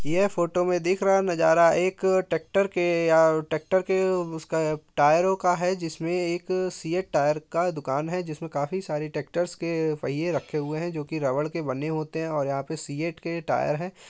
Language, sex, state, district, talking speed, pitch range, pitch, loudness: Hindi, male, Uttar Pradesh, Etah, 200 wpm, 155-180 Hz, 165 Hz, -25 LUFS